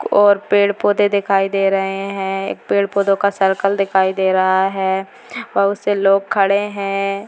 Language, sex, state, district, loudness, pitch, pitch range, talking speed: Hindi, female, Bihar, Madhepura, -16 LUFS, 195 Hz, 195-200 Hz, 175 wpm